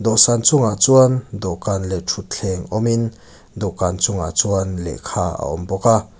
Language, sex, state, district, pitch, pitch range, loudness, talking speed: Mizo, male, Mizoram, Aizawl, 100 Hz, 95-115 Hz, -18 LUFS, 165 wpm